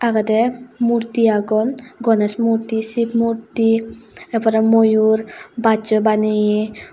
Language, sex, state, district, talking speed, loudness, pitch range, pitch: Chakma, female, Tripura, West Tripura, 105 wpm, -17 LUFS, 220-230 Hz, 225 Hz